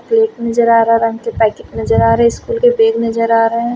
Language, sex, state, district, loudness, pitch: Hindi, female, Haryana, Rohtak, -13 LUFS, 230 Hz